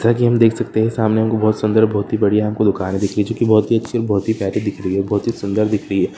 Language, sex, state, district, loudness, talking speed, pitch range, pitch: Hindi, male, Maharashtra, Solapur, -17 LUFS, 310 wpm, 100-110 Hz, 105 Hz